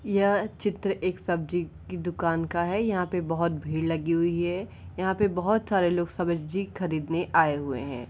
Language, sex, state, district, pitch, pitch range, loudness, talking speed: Hindi, female, Uttar Pradesh, Varanasi, 175 Hz, 165-195 Hz, -27 LUFS, 185 wpm